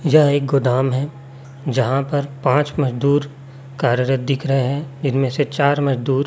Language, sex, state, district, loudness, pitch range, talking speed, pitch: Hindi, male, Chhattisgarh, Raipur, -19 LUFS, 135-145 Hz, 155 wpm, 135 Hz